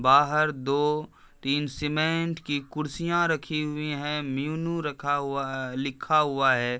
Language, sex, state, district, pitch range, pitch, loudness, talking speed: Hindi, male, Uttar Pradesh, Hamirpur, 140-155 Hz, 150 Hz, -27 LUFS, 125 wpm